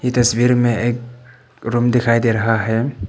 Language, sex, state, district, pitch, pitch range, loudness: Hindi, male, Arunachal Pradesh, Papum Pare, 120 Hz, 115-125 Hz, -17 LUFS